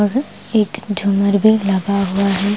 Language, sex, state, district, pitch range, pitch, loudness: Hindi, female, Bihar, Patna, 200-210 Hz, 200 Hz, -16 LUFS